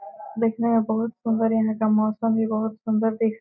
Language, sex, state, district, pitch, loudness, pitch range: Hindi, female, Bihar, Gopalganj, 225 Hz, -23 LUFS, 220-225 Hz